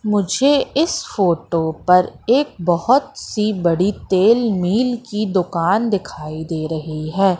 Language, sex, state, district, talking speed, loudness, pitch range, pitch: Hindi, female, Madhya Pradesh, Katni, 130 wpm, -18 LUFS, 170-230 Hz, 195 Hz